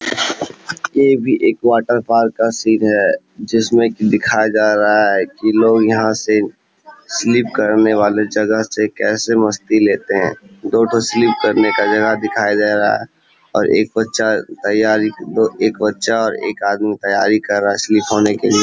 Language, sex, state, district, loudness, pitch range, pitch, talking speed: Hindi, male, Bihar, Jamui, -15 LUFS, 105-115 Hz, 110 Hz, 170 wpm